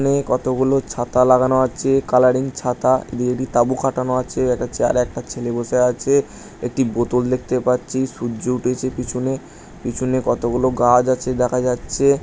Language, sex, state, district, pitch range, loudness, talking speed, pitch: Bengali, male, West Bengal, Jhargram, 125-130 Hz, -19 LUFS, 150 wpm, 125 Hz